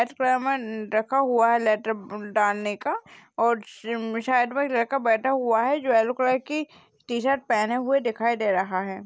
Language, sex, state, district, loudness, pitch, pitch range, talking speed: Hindi, female, Uttar Pradesh, Jalaun, -24 LUFS, 235 Hz, 215-260 Hz, 180 wpm